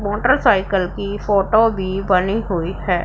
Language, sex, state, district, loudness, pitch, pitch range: Hindi, female, Punjab, Pathankot, -18 LUFS, 200 Hz, 185-210 Hz